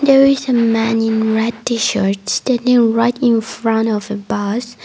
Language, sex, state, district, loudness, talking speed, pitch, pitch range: English, female, Nagaland, Dimapur, -15 LUFS, 160 wpm, 230 Hz, 220-240 Hz